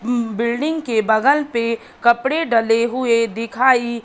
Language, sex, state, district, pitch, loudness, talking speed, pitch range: Hindi, female, Madhya Pradesh, Katni, 235 Hz, -18 LUFS, 120 wpm, 230-255 Hz